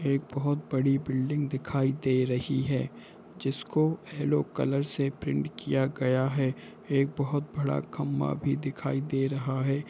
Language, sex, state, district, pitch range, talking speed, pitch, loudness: Hindi, male, Jharkhand, Jamtara, 130-145 Hz, 145 wpm, 135 Hz, -29 LUFS